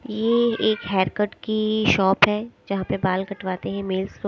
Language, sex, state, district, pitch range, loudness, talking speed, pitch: Hindi, female, Himachal Pradesh, Shimla, 190-215 Hz, -22 LUFS, 195 wpm, 200 Hz